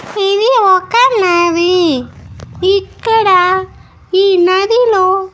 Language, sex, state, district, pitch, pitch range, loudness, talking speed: Telugu, female, Andhra Pradesh, Annamaya, 380 Hz, 365-420 Hz, -11 LUFS, 65 wpm